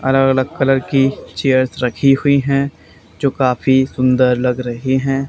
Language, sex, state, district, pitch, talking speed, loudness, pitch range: Hindi, male, Haryana, Charkhi Dadri, 130 Hz, 160 wpm, -15 LUFS, 125-135 Hz